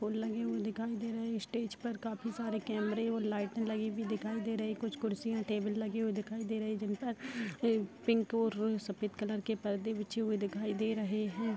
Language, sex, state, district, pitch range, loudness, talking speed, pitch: Hindi, female, Bihar, Sitamarhi, 210-225 Hz, -36 LUFS, 225 wpm, 220 Hz